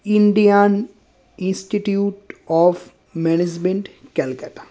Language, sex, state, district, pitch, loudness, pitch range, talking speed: Bengali, male, West Bengal, North 24 Parganas, 200 Hz, -18 LUFS, 175-205 Hz, 75 wpm